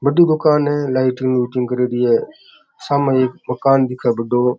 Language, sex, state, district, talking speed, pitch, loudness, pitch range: Rajasthani, male, Rajasthan, Churu, 155 wpm, 130 Hz, -17 LUFS, 125-145 Hz